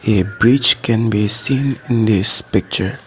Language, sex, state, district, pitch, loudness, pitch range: English, male, Assam, Sonitpur, 110 Hz, -15 LUFS, 100-125 Hz